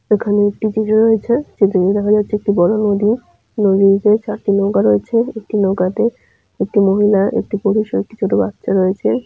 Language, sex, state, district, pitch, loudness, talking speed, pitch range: Bengali, female, West Bengal, Jalpaiguri, 205 Hz, -15 LUFS, 160 wpm, 195-215 Hz